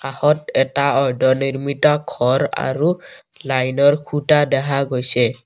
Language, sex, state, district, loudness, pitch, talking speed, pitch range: Assamese, male, Assam, Kamrup Metropolitan, -18 LUFS, 135 Hz, 110 wpm, 130-145 Hz